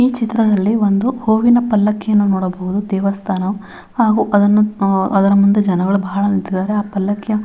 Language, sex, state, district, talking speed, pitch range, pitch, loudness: Kannada, female, Karnataka, Bellary, 135 wpm, 195-215 Hz, 205 Hz, -15 LUFS